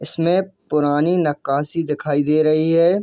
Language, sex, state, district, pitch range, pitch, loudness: Hindi, male, Jharkhand, Jamtara, 150-170 Hz, 155 Hz, -18 LUFS